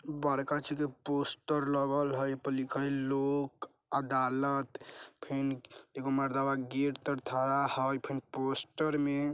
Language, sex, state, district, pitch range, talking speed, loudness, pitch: Bajjika, male, Bihar, Vaishali, 135-140 Hz, 150 wpm, -33 LUFS, 140 Hz